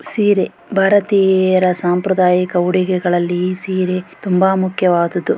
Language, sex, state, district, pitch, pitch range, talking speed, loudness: Kannada, female, Karnataka, Gulbarga, 185 Hz, 180-190 Hz, 80 wpm, -15 LUFS